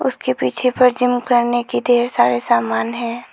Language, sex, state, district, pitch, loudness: Hindi, female, Arunachal Pradesh, Lower Dibang Valley, 240 Hz, -17 LUFS